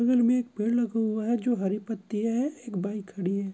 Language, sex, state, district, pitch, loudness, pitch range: Hindi, female, Andhra Pradesh, Krishna, 225 Hz, -28 LUFS, 200-240 Hz